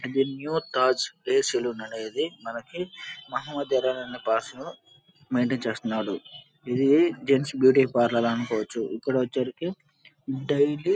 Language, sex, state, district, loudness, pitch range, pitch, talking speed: Telugu, male, Andhra Pradesh, Krishna, -26 LUFS, 125-150 Hz, 130 Hz, 125 wpm